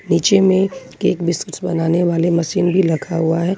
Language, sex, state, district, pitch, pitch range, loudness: Hindi, female, Jharkhand, Ranchi, 175 Hz, 170-185 Hz, -17 LUFS